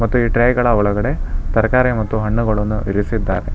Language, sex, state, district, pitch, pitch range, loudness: Kannada, male, Karnataka, Bangalore, 110 Hz, 105-120 Hz, -17 LUFS